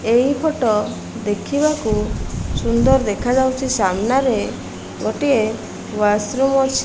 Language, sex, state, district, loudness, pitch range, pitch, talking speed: Odia, female, Odisha, Malkangiri, -19 LUFS, 210-265 Hz, 240 Hz, 80 wpm